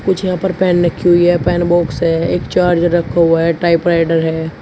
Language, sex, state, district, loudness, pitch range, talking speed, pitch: Hindi, male, Uttar Pradesh, Shamli, -13 LUFS, 165-175 Hz, 220 wpm, 175 Hz